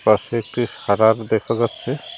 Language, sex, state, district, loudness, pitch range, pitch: Bengali, male, West Bengal, Cooch Behar, -20 LUFS, 110-120 Hz, 115 Hz